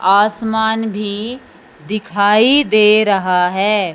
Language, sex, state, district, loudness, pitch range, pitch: Hindi, male, Punjab, Fazilka, -14 LUFS, 200-220 Hz, 210 Hz